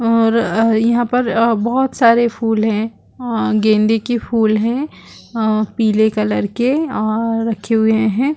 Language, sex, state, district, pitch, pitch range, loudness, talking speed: Hindi, female, Chhattisgarh, Balrampur, 225 Hz, 220-235 Hz, -16 LUFS, 165 wpm